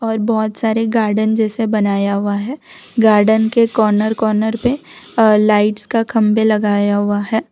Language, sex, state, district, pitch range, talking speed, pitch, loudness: Hindi, female, Gujarat, Valsad, 210-225 Hz, 150 wpm, 220 Hz, -15 LUFS